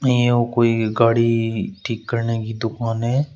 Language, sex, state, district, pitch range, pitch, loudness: Hindi, male, Uttar Pradesh, Shamli, 115-120 Hz, 115 Hz, -20 LUFS